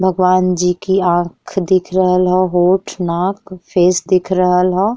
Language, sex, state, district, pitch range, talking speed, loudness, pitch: Bhojpuri, female, Uttar Pradesh, Ghazipur, 180-185 Hz, 155 wpm, -15 LUFS, 185 Hz